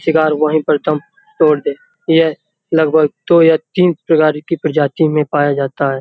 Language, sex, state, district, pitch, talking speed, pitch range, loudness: Hindi, male, Uttar Pradesh, Hamirpur, 160 Hz, 180 wpm, 150-170 Hz, -14 LUFS